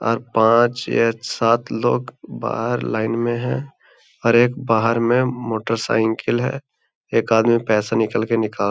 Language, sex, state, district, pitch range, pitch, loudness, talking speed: Hindi, male, Bihar, Gaya, 110-120 Hz, 115 Hz, -19 LUFS, 150 wpm